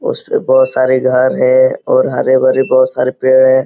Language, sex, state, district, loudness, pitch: Hindi, male, Uttar Pradesh, Muzaffarnagar, -11 LUFS, 130 Hz